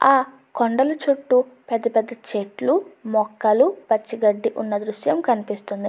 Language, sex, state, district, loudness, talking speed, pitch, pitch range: Telugu, female, Andhra Pradesh, Anantapur, -21 LUFS, 110 wpm, 230 Hz, 210-265 Hz